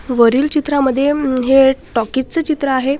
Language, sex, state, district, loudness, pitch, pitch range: Marathi, female, Maharashtra, Washim, -15 LUFS, 270 Hz, 260-290 Hz